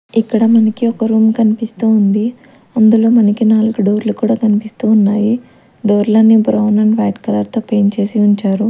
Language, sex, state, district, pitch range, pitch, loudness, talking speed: Telugu, female, Andhra Pradesh, Manyam, 210-225 Hz, 220 Hz, -13 LUFS, 165 wpm